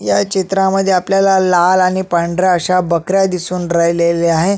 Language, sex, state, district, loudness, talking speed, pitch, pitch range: Marathi, male, Maharashtra, Sindhudurg, -14 LUFS, 145 wpm, 180 Hz, 170-190 Hz